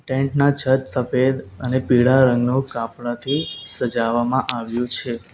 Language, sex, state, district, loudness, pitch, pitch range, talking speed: Gujarati, male, Gujarat, Valsad, -19 LUFS, 125 Hz, 120-130 Hz, 125 wpm